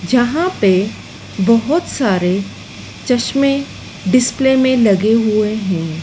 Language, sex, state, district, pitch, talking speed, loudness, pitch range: Hindi, female, Madhya Pradesh, Dhar, 230 Hz, 100 wpm, -15 LUFS, 195-260 Hz